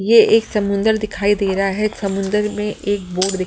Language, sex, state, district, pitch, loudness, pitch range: Hindi, female, Delhi, New Delhi, 205 Hz, -18 LUFS, 195-215 Hz